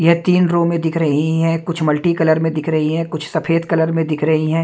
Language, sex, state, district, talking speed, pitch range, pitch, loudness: Hindi, male, Haryana, Jhajjar, 260 wpm, 155-165 Hz, 160 Hz, -17 LUFS